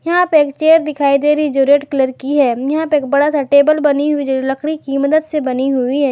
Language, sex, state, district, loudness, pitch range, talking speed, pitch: Hindi, female, Jharkhand, Garhwa, -14 LUFS, 275-300 Hz, 265 wpm, 285 Hz